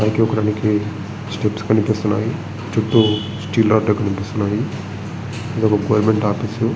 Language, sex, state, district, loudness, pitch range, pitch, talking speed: Telugu, male, Andhra Pradesh, Srikakulam, -19 LUFS, 105-110 Hz, 110 Hz, 135 wpm